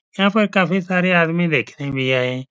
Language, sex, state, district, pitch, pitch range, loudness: Hindi, male, Uttar Pradesh, Etah, 170 Hz, 135-190 Hz, -18 LUFS